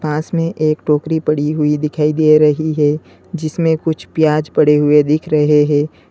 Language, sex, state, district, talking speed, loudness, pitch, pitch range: Hindi, male, Uttar Pradesh, Lalitpur, 175 wpm, -15 LUFS, 150 Hz, 150-155 Hz